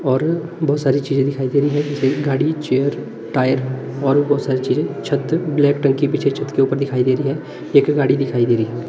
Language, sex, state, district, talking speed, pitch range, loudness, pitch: Hindi, male, Himachal Pradesh, Shimla, 230 wpm, 130-145 Hz, -18 LUFS, 140 Hz